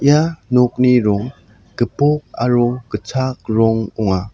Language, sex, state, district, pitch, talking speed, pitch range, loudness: Garo, male, Meghalaya, South Garo Hills, 125 Hz, 110 wpm, 110-130 Hz, -17 LUFS